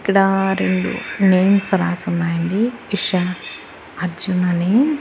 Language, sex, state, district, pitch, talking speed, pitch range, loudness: Telugu, female, Andhra Pradesh, Annamaya, 185 Hz, 110 wpm, 175-195 Hz, -18 LUFS